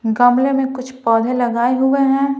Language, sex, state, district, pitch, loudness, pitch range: Hindi, female, Bihar, Patna, 255 Hz, -16 LUFS, 240-270 Hz